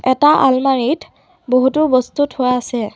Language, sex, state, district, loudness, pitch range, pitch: Assamese, female, Assam, Sonitpur, -15 LUFS, 250-285 Hz, 260 Hz